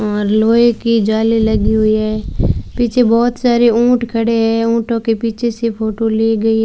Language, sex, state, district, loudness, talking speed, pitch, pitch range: Hindi, female, Rajasthan, Bikaner, -14 LUFS, 180 wpm, 225 Hz, 220-235 Hz